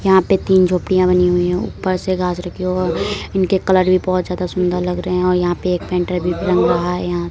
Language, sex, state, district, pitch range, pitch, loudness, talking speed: Hindi, female, Uttar Pradesh, Muzaffarnagar, 180-185 Hz, 180 Hz, -17 LUFS, 220 wpm